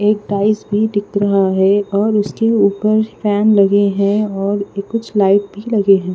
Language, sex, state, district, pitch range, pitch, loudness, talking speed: Hindi, female, Haryana, Rohtak, 200-210 Hz, 205 Hz, -15 LUFS, 175 wpm